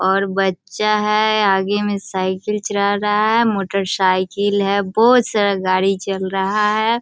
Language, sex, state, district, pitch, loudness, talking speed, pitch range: Hindi, female, Bihar, Sitamarhi, 200 Hz, -17 LUFS, 155 wpm, 190-210 Hz